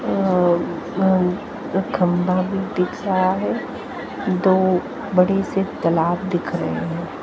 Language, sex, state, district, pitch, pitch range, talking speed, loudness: Hindi, female, Haryana, Jhajjar, 185 Hz, 180-195 Hz, 115 wpm, -20 LUFS